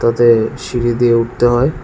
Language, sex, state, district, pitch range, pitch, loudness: Bengali, male, Tripura, West Tripura, 115-120 Hz, 120 Hz, -14 LUFS